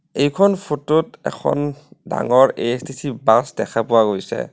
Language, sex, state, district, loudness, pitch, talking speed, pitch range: Assamese, male, Assam, Kamrup Metropolitan, -19 LUFS, 140 Hz, 130 wpm, 120-160 Hz